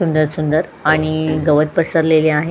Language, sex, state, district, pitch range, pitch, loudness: Marathi, female, Goa, North and South Goa, 155-160 Hz, 155 Hz, -16 LUFS